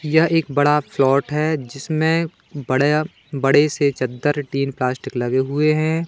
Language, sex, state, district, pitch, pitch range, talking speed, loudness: Hindi, male, Madhya Pradesh, Katni, 145 Hz, 135-155 Hz, 160 wpm, -19 LUFS